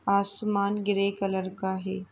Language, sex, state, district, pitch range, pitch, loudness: Hindi, female, Uttar Pradesh, Etah, 190-200 Hz, 200 Hz, -28 LUFS